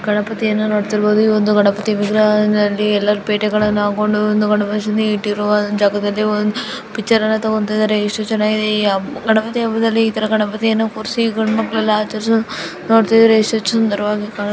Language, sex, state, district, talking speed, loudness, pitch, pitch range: Kannada, female, Karnataka, Gulbarga, 130 wpm, -16 LUFS, 215 Hz, 210-220 Hz